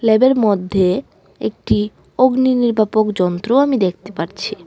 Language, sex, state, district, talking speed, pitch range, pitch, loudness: Bengali, female, Tripura, West Tripura, 105 wpm, 190-245 Hz, 215 Hz, -17 LUFS